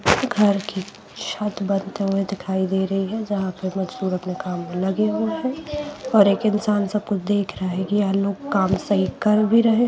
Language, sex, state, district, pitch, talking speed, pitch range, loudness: Hindi, female, Jharkhand, Sahebganj, 200 Hz, 205 wpm, 190-215 Hz, -22 LUFS